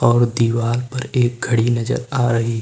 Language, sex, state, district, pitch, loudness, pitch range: Hindi, male, Uttar Pradesh, Lucknow, 120 Hz, -19 LUFS, 115-125 Hz